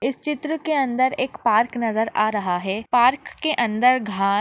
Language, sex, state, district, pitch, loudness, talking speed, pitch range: Hindi, female, Maharashtra, Nagpur, 240 Hz, -21 LUFS, 205 wpm, 215-265 Hz